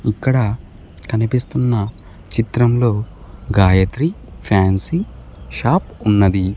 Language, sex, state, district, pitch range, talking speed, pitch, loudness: Telugu, male, Andhra Pradesh, Sri Satya Sai, 95-120 Hz, 65 wpm, 105 Hz, -17 LUFS